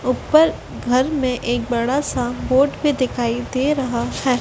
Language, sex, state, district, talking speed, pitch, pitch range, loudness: Hindi, female, Madhya Pradesh, Dhar, 165 wpm, 255 Hz, 245-275 Hz, -19 LUFS